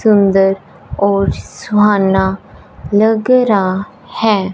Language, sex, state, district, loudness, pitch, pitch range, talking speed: Hindi, female, Punjab, Fazilka, -13 LUFS, 200 Hz, 195-215 Hz, 80 wpm